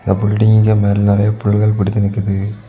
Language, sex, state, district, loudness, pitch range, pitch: Tamil, male, Tamil Nadu, Kanyakumari, -14 LUFS, 100-105 Hz, 105 Hz